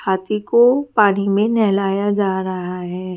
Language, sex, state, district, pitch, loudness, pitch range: Hindi, female, Haryana, Charkhi Dadri, 200 Hz, -17 LUFS, 190-210 Hz